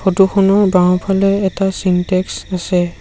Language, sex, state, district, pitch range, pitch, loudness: Assamese, male, Assam, Sonitpur, 180-195 Hz, 190 Hz, -14 LUFS